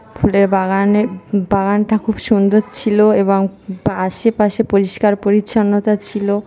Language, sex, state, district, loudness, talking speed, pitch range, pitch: Bengali, female, West Bengal, North 24 Parganas, -15 LUFS, 95 wpm, 195-215 Hz, 205 Hz